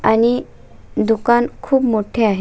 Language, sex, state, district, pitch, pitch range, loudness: Marathi, female, Maharashtra, Solapur, 235 Hz, 220-240 Hz, -17 LUFS